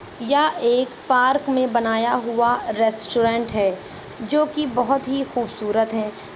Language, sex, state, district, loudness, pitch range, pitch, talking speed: Hindi, female, Uttar Pradesh, Ghazipur, -21 LUFS, 225-265 Hz, 235 Hz, 125 wpm